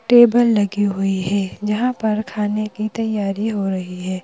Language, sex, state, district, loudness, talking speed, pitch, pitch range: Hindi, female, Madhya Pradesh, Bhopal, -19 LUFS, 170 wpm, 210 Hz, 195-220 Hz